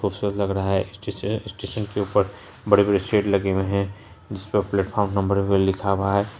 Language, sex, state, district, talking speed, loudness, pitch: Hindi, male, Bihar, Saharsa, 195 wpm, -23 LUFS, 100 Hz